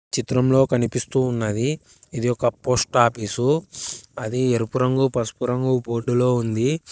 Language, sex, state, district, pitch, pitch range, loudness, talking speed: Telugu, male, Telangana, Hyderabad, 125 Hz, 120-130 Hz, -22 LUFS, 120 wpm